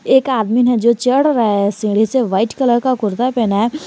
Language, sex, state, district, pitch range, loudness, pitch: Hindi, male, Jharkhand, Garhwa, 215-255 Hz, -15 LUFS, 235 Hz